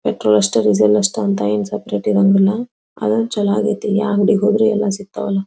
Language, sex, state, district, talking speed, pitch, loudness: Kannada, female, Karnataka, Belgaum, 175 wpm, 200 Hz, -16 LUFS